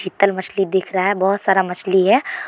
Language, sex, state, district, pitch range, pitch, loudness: Hindi, female, Jharkhand, Deoghar, 190-195 Hz, 190 Hz, -18 LUFS